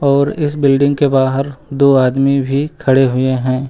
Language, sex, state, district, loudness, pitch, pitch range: Hindi, male, Uttar Pradesh, Lucknow, -14 LUFS, 140 Hz, 130-140 Hz